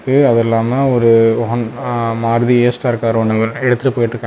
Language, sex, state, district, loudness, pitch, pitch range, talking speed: Tamil, male, Tamil Nadu, Namakkal, -14 LUFS, 120 Hz, 115-125 Hz, 170 wpm